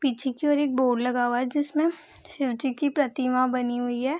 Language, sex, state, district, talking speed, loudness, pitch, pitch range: Hindi, female, Bihar, Purnia, 215 wpm, -25 LUFS, 260 Hz, 250-290 Hz